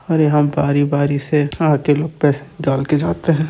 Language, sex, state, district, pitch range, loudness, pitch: Chhattisgarhi, male, Chhattisgarh, Sarguja, 145-155 Hz, -17 LUFS, 150 Hz